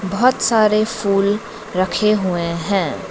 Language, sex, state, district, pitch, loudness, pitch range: Hindi, female, Arunachal Pradesh, Lower Dibang Valley, 205 Hz, -18 LUFS, 190-215 Hz